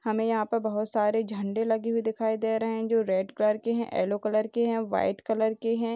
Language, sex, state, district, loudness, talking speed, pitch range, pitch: Hindi, male, Bihar, Purnia, -28 LUFS, 240 wpm, 215-230 Hz, 225 Hz